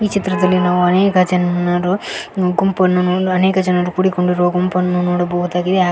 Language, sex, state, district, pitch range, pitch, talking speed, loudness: Kannada, female, Karnataka, Koppal, 180-185 Hz, 180 Hz, 120 wpm, -15 LUFS